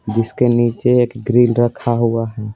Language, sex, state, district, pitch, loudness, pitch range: Hindi, male, Bihar, Patna, 120 Hz, -16 LUFS, 115-120 Hz